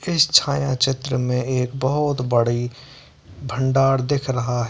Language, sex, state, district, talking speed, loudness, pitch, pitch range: Hindi, male, Bihar, Begusarai, 140 wpm, -20 LUFS, 130 Hz, 125-140 Hz